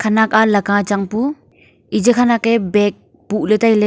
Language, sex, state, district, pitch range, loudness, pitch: Wancho, female, Arunachal Pradesh, Longding, 205-230 Hz, -15 LUFS, 215 Hz